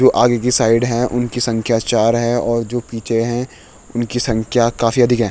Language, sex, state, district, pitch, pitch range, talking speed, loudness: Hindi, male, Uttarakhand, Tehri Garhwal, 120 Hz, 115-120 Hz, 205 wpm, -17 LUFS